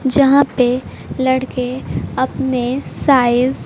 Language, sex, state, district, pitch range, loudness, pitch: Hindi, female, Bihar, West Champaran, 250-270 Hz, -16 LUFS, 260 Hz